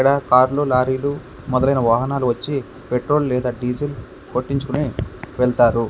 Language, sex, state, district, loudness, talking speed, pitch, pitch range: Telugu, male, Andhra Pradesh, Krishna, -19 LUFS, 110 wpm, 130 Hz, 125-140 Hz